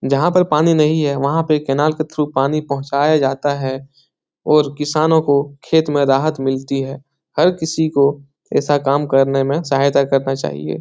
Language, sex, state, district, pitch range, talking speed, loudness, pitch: Hindi, male, Bihar, Jahanabad, 135-155 Hz, 180 wpm, -16 LUFS, 140 Hz